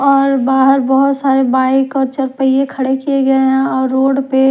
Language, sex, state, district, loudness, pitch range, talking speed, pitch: Hindi, female, Odisha, Khordha, -13 LUFS, 265-270 Hz, 200 wpm, 270 Hz